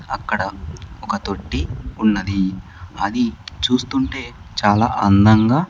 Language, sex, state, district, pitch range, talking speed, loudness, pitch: Telugu, male, Andhra Pradesh, Sri Satya Sai, 95-120 Hz, 85 wpm, -19 LUFS, 105 Hz